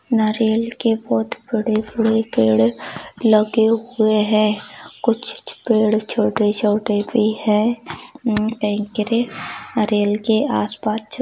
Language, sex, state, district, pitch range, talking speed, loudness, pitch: Hindi, female, Maharashtra, Chandrapur, 210-225 Hz, 100 wpm, -19 LUFS, 215 Hz